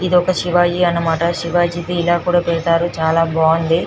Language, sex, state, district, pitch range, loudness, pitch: Telugu, female, Telangana, Nalgonda, 165-175 Hz, -16 LUFS, 175 Hz